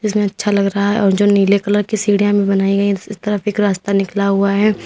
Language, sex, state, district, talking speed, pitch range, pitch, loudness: Hindi, female, Uttar Pradesh, Lalitpur, 260 wpm, 200-205 Hz, 200 Hz, -15 LUFS